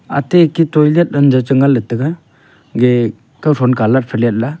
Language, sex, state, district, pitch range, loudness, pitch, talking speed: Wancho, male, Arunachal Pradesh, Longding, 125-150 Hz, -13 LUFS, 135 Hz, 170 wpm